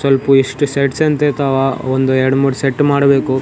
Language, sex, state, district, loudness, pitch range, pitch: Kannada, male, Karnataka, Raichur, -14 LUFS, 135-140 Hz, 135 Hz